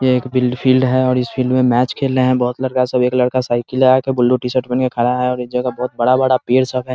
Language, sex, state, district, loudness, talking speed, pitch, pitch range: Hindi, male, Bihar, Muzaffarpur, -16 LUFS, 300 wpm, 125 Hz, 125-130 Hz